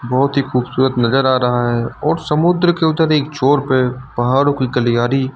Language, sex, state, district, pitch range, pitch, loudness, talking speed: Hindi, male, Uttar Pradesh, Lucknow, 125-145 Hz, 130 Hz, -16 LUFS, 190 wpm